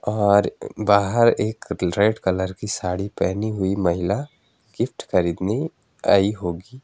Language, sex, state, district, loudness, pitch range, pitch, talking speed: Hindi, male, West Bengal, Alipurduar, -22 LUFS, 95-105 Hz, 100 Hz, 125 wpm